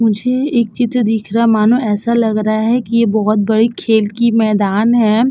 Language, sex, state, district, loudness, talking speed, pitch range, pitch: Hindi, female, Uttar Pradesh, Budaun, -14 LUFS, 215 wpm, 215-235 Hz, 225 Hz